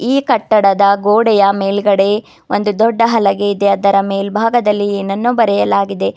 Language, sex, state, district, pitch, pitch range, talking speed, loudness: Kannada, female, Karnataka, Bidar, 205 Hz, 195-220 Hz, 115 wpm, -13 LUFS